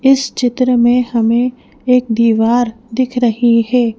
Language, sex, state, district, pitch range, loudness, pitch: Hindi, female, Madhya Pradesh, Bhopal, 230-250 Hz, -13 LUFS, 245 Hz